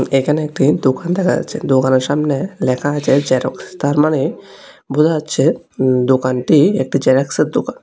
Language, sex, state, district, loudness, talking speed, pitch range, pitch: Bengali, male, Tripura, West Tripura, -16 LUFS, 140 wpm, 130-150 Hz, 140 Hz